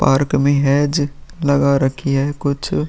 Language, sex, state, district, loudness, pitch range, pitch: Hindi, male, Bihar, Vaishali, -17 LUFS, 140-145 Hz, 140 Hz